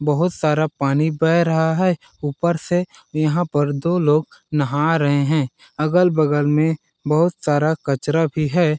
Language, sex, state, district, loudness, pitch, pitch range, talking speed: Hindi, male, Chhattisgarh, Balrampur, -19 LUFS, 155 Hz, 150-165 Hz, 145 wpm